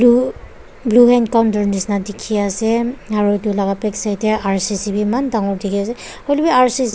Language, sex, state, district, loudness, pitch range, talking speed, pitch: Nagamese, female, Nagaland, Dimapur, -17 LUFS, 205-240 Hz, 180 wpm, 215 Hz